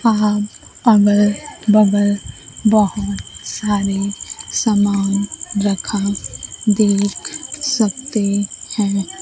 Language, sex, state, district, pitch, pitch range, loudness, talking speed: Hindi, female, Bihar, Kaimur, 205 Hz, 200-215 Hz, -17 LUFS, 65 wpm